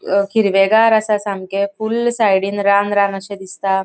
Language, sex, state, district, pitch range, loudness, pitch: Konkani, female, Goa, North and South Goa, 195-215 Hz, -16 LUFS, 200 Hz